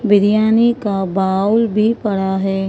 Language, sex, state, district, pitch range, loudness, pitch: Hindi, female, Maharashtra, Mumbai Suburban, 195-220 Hz, -15 LUFS, 205 Hz